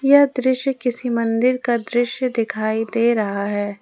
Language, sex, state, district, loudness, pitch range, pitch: Hindi, female, Jharkhand, Ranchi, -20 LUFS, 225-255 Hz, 235 Hz